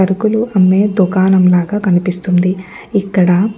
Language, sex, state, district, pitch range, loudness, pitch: Telugu, female, Andhra Pradesh, Guntur, 185-200 Hz, -13 LUFS, 190 Hz